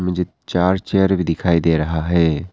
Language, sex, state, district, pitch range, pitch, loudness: Hindi, male, Arunachal Pradesh, Papum Pare, 80-90 Hz, 85 Hz, -18 LUFS